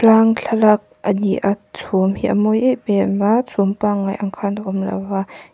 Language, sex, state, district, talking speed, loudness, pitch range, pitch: Mizo, female, Mizoram, Aizawl, 205 wpm, -18 LUFS, 200-220 Hz, 205 Hz